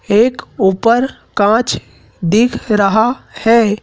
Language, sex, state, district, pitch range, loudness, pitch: Hindi, male, Madhya Pradesh, Dhar, 205-235 Hz, -14 LUFS, 220 Hz